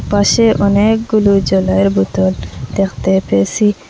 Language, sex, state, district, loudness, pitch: Bengali, female, Assam, Hailakandi, -13 LUFS, 195 Hz